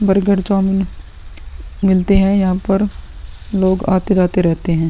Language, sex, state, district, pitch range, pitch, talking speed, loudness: Hindi, male, Uttar Pradesh, Muzaffarnagar, 170-195 Hz, 190 Hz, 135 wpm, -16 LUFS